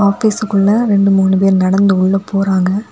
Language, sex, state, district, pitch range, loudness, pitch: Tamil, female, Tamil Nadu, Kanyakumari, 190-200 Hz, -12 LUFS, 195 Hz